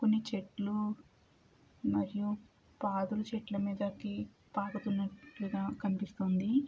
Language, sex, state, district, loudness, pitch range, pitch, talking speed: Telugu, female, Andhra Pradesh, Krishna, -37 LUFS, 195-215 Hz, 205 Hz, 70 wpm